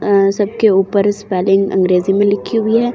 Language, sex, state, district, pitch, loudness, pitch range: Hindi, female, Delhi, New Delhi, 200 Hz, -14 LUFS, 195-210 Hz